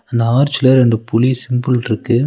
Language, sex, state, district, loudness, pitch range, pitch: Tamil, male, Tamil Nadu, Nilgiris, -14 LUFS, 115-130 Hz, 125 Hz